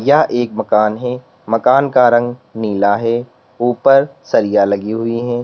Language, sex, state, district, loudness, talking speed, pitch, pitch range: Hindi, male, Uttar Pradesh, Lalitpur, -15 LUFS, 155 wpm, 120 Hz, 110-125 Hz